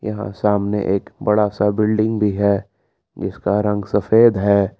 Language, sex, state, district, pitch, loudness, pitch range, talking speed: Hindi, male, Jharkhand, Palamu, 105 Hz, -18 LUFS, 100-105 Hz, 150 wpm